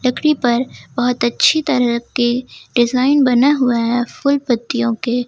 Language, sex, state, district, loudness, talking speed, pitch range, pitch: Hindi, female, Jharkhand, Ranchi, -16 LUFS, 145 wpm, 240-270 Hz, 245 Hz